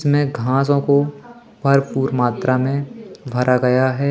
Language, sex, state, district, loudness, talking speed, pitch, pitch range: Hindi, male, Madhya Pradesh, Katni, -18 LUFS, 130 wpm, 135 Hz, 130-145 Hz